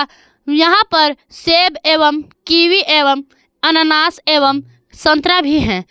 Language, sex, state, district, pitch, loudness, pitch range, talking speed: Hindi, female, Jharkhand, Garhwa, 310 Hz, -12 LUFS, 285-335 Hz, 110 wpm